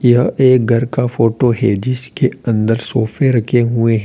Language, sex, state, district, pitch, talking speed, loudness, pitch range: Hindi, male, Uttar Pradesh, Lalitpur, 120 Hz, 175 wpm, -14 LUFS, 115-125 Hz